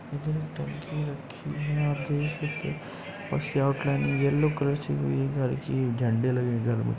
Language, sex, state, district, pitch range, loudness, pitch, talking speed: Hindi, male, Uttar Pradesh, Muzaffarnagar, 125-150 Hz, -28 LUFS, 140 Hz, 110 wpm